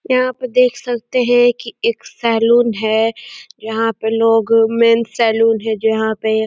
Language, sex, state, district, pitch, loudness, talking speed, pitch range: Hindi, female, Uttar Pradesh, Deoria, 230 Hz, -15 LUFS, 175 wpm, 225-245 Hz